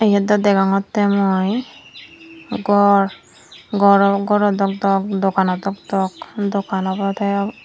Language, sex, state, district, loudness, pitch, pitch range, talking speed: Chakma, female, Tripura, Dhalai, -17 LUFS, 200 Hz, 195-205 Hz, 110 wpm